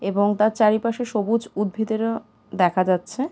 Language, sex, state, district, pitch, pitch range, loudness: Bengali, female, West Bengal, Purulia, 215 Hz, 200-225 Hz, -22 LUFS